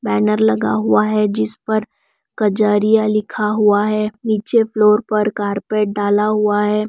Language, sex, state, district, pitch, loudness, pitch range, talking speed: Hindi, female, Bihar, West Champaran, 210 Hz, -16 LUFS, 195-215 Hz, 150 wpm